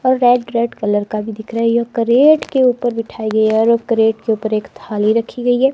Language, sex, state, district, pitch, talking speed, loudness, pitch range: Hindi, female, Himachal Pradesh, Shimla, 230 Hz, 270 wpm, -16 LUFS, 220-245 Hz